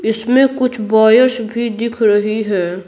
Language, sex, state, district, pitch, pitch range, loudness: Hindi, female, Bihar, Patna, 225 Hz, 215-240 Hz, -14 LUFS